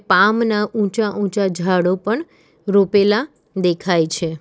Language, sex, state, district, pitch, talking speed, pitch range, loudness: Gujarati, female, Gujarat, Valsad, 200 Hz, 110 wpm, 175-210 Hz, -18 LUFS